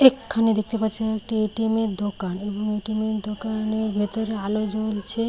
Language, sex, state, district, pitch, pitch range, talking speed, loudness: Bengali, female, West Bengal, Paschim Medinipur, 215 Hz, 210-220 Hz, 170 wpm, -25 LUFS